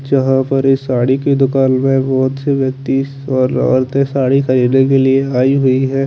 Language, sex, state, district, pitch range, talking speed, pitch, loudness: Hindi, male, Chandigarh, Chandigarh, 130-135 Hz, 180 wpm, 135 Hz, -13 LUFS